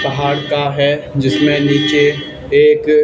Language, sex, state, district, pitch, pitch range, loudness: Hindi, male, Haryana, Charkhi Dadri, 145 Hz, 140-150 Hz, -13 LUFS